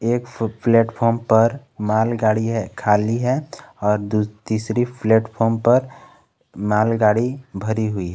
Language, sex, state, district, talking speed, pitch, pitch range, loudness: Hindi, male, Jharkhand, Garhwa, 125 wpm, 110 Hz, 105-120 Hz, -20 LUFS